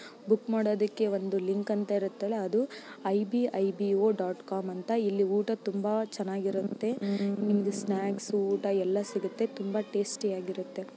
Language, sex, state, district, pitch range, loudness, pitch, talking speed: Kannada, female, Karnataka, Mysore, 195-215 Hz, -30 LUFS, 205 Hz, 115 wpm